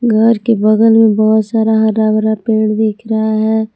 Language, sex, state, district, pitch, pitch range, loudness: Hindi, female, Jharkhand, Palamu, 220 Hz, 215-225 Hz, -12 LUFS